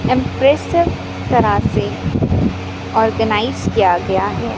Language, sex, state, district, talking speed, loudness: Hindi, female, Chhattisgarh, Raipur, 90 wpm, -16 LUFS